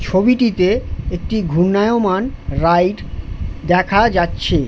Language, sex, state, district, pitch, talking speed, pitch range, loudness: Bengali, male, West Bengal, Jhargram, 185 Hz, 90 wpm, 165-205 Hz, -16 LUFS